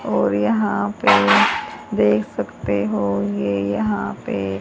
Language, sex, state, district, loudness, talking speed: Hindi, female, Haryana, Charkhi Dadri, -19 LUFS, 115 wpm